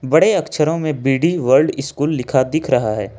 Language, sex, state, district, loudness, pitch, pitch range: Hindi, male, Jharkhand, Ranchi, -17 LUFS, 145 Hz, 130-155 Hz